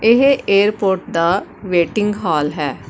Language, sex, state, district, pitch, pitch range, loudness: Punjabi, female, Karnataka, Bangalore, 190 Hz, 165-210 Hz, -16 LUFS